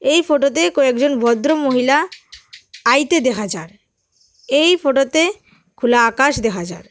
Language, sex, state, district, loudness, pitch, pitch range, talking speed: Bengali, female, Assam, Hailakandi, -16 LUFS, 275 Hz, 240-300 Hz, 120 wpm